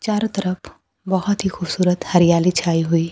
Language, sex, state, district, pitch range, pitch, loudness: Hindi, female, Bihar, Kaimur, 170-190 Hz, 180 Hz, -19 LUFS